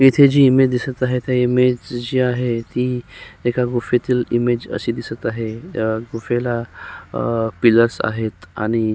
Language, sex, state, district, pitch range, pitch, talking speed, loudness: Marathi, male, Maharashtra, Solapur, 115-125 Hz, 120 Hz, 145 wpm, -19 LUFS